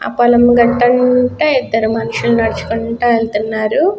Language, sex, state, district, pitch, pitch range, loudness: Telugu, female, Andhra Pradesh, Guntur, 235 Hz, 225-250 Hz, -13 LUFS